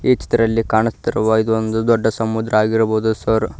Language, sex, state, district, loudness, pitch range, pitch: Kannada, male, Karnataka, Koppal, -17 LUFS, 110-115 Hz, 110 Hz